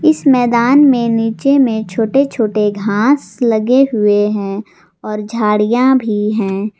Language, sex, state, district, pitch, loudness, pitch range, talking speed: Hindi, female, Jharkhand, Garhwa, 225 Hz, -13 LUFS, 210-260 Hz, 130 wpm